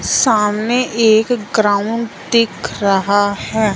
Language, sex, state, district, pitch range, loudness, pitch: Hindi, male, Punjab, Fazilka, 205-230 Hz, -15 LUFS, 215 Hz